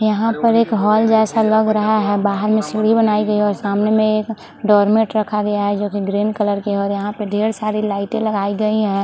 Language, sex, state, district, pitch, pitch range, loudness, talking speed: Hindi, female, Chhattisgarh, Bilaspur, 215 Hz, 205-220 Hz, -17 LUFS, 245 wpm